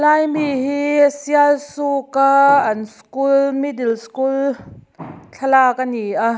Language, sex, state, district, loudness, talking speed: Mizo, female, Mizoram, Aizawl, -16 LUFS, 115 wpm